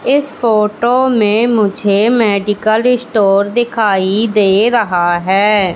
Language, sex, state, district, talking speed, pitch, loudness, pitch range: Hindi, female, Madhya Pradesh, Katni, 105 wpm, 215 Hz, -12 LUFS, 200-235 Hz